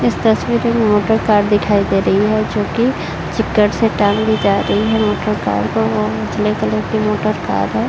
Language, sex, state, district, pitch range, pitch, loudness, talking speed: Hindi, female, Uttar Pradesh, Varanasi, 195-220 Hz, 210 Hz, -15 LUFS, 120 wpm